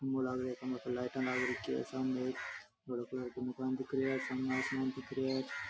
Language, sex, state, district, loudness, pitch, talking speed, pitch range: Rajasthani, male, Rajasthan, Nagaur, -38 LUFS, 130 Hz, 240 wpm, 125-130 Hz